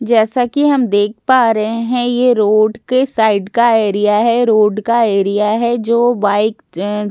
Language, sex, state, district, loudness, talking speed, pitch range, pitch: Hindi, female, Delhi, New Delhi, -14 LUFS, 195 wpm, 210-240 Hz, 225 Hz